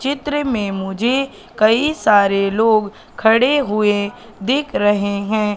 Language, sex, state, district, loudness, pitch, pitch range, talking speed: Hindi, female, Madhya Pradesh, Katni, -17 LUFS, 220 Hz, 205-265 Hz, 120 wpm